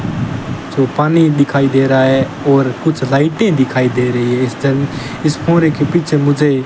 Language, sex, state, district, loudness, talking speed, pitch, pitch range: Hindi, male, Rajasthan, Bikaner, -14 LUFS, 190 wpm, 140 Hz, 130-150 Hz